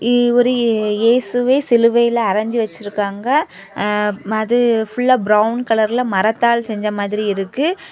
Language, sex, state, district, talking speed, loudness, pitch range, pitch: Tamil, female, Tamil Nadu, Kanyakumari, 120 wpm, -16 LUFS, 210-245 Hz, 230 Hz